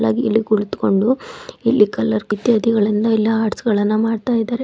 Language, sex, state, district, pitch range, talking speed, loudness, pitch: Kannada, female, Karnataka, Mysore, 210-235 Hz, 105 wpm, -17 LUFS, 220 Hz